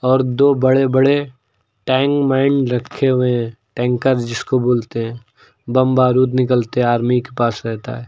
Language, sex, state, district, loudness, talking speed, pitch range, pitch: Hindi, male, Uttar Pradesh, Lucknow, -16 LUFS, 155 wpm, 120-130 Hz, 125 Hz